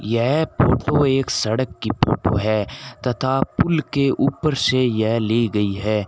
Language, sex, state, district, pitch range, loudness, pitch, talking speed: Hindi, male, Rajasthan, Bikaner, 110-135 Hz, -20 LUFS, 125 Hz, 160 wpm